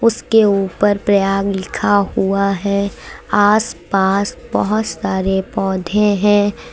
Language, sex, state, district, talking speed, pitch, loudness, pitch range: Hindi, female, Uttar Pradesh, Lucknow, 105 wpm, 200 Hz, -16 LUFS, 195-205 Hz